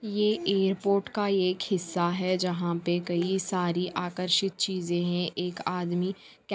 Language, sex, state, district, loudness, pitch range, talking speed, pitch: Hindi, female, Chhattisgarh, Bilaspur, -28 LUFS, 175-195 Hz, 140 wpm, 180 Hz